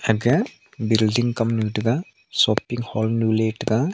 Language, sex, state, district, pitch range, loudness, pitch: Wancho, male, Arunachal Pradesh, Longding, 110-120 Hz, -22 LUFS, 115 Hz